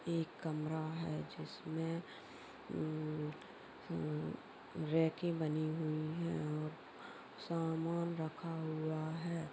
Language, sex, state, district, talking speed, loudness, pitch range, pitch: Hindi, female, Bihar, Madhepura, 80 wpm, -41 LUFS, 155-165 Hz, 160 Hz